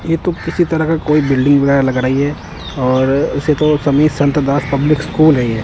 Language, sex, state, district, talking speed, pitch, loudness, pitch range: Hindi, male, Punjab, Kapurthala, 210 wpm, 145 Hz, -14 LUFS, 135-155 Hz